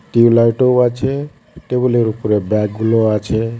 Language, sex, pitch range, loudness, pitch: Bengali, male, 110-125 Hz, -15 LUFS, 115 Hz